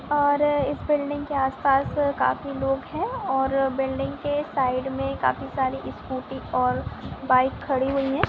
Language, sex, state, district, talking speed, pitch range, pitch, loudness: Hindi, female, Chhattisgarh, Korba, 160 wpm, 265-285 Hz, 270 Hz, -25 LUFS